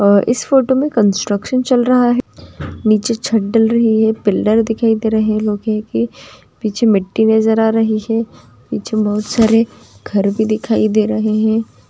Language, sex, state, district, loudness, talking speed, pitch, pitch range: Hindi, female, Bihar, Purnia, -15 LUFS, 190 wpm, 220 Hz, 215-225 Hz